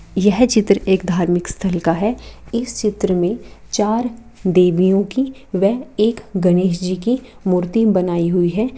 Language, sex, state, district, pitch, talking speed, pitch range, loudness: Hindi, female, Jharkhand, Sahebganj, 200 Hz, 150 wpm, 180-230 Hz, -18 LUFS